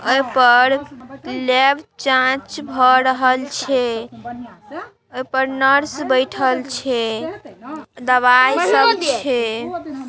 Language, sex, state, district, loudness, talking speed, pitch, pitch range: Maithili, female, Bihar, Darbhanga, -16 LUFS, 75 wpm, 260 Hz, 250-275 Hz